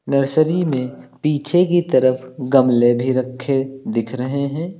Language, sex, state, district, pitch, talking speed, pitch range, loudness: Hindi, male, Uttar Pradesh, Lucknow, 135 Hz, 140 wpm, 130-155 Hz, -18 LUFS